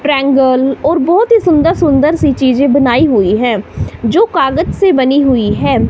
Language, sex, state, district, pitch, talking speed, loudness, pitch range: Hindi, female, Himachal Pradesh, Shimla, 280 Hz, 175 wpm, -11 LUFS, 260-325 Hz